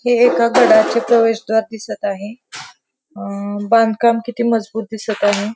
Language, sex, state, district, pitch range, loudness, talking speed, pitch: Marathi, female, Maharashtra, Pune, 210-235 Hz, -16 LUFS, 130 wpm, 225 Hz